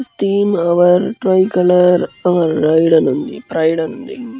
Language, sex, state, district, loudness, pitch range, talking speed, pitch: Telugu, male, Andhra Pradesh, Guntur, -14 LUFS, 165-195 Hz, 95 wpm, 180 Hz